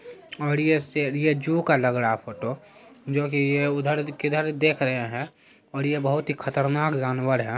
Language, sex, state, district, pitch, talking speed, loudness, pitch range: Hindi, male, Bihar, Araria, 145 Hz, 190 wpm, -24 LUFS, 135-155 Hz